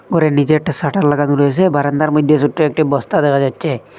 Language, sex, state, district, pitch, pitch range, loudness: Bengali, male, Assam, Hailakandi, 150 Hz, 145-155 Hz, -14 LUFS